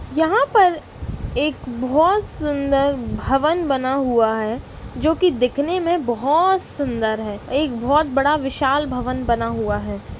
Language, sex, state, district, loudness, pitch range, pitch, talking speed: Hindi, female, Uttar Pradesh, Varanasi, -20 LUFS, 240-310 Hz, 275 Hz, 140 wpm